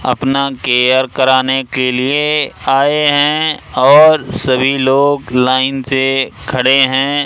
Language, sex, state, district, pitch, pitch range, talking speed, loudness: Hindi, male, Madhya Pradesh, Katni, 135 Hz, 130-145 Hz, 115 wpm, -12 LUFS